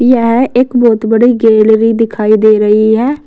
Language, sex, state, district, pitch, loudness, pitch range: Hindi, female, Uttar Pradesh, Saharanpur, 225 Hz, -9 LUFS, 220-245 Hz